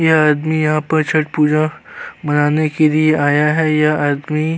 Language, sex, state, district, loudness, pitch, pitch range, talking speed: Hindi, male, Uttar Pradesh, Jyotiba Phule Nagar, -15 LUFS, 155 Hz, 150-155 Hz, 185 wpm